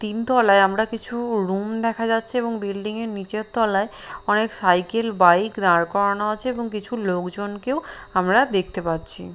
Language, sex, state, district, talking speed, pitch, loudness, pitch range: Bengali, female, Bihar, Katihar, 155 wpm, 210 Hz, -22 LUFS, 190-230 Hz